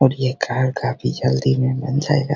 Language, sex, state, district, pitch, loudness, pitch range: Hindi, male, Bihar, Begusarai, 135 Hz, -20 LUFS, 130-135 Hz